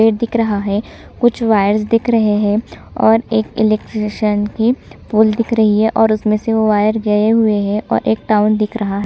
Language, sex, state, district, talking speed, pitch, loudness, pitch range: Hindi, female, Chhattisgarh, Sukma, 200 wpm, 215 Hz, -15 LUFS, 210-225 Hz